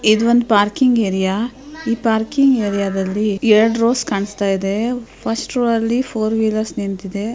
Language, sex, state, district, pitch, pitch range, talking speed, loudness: Kannada, female, Karnataka, Mysore, 220 Hz, 205-235 Hz, 145 wpm, -17 LUFS